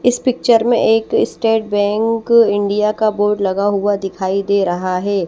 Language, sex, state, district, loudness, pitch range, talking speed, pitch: Hindi, male, Odisha, Nuapada, -15 LUFS, 200-225 Hz, 170 wpm, 205 Hz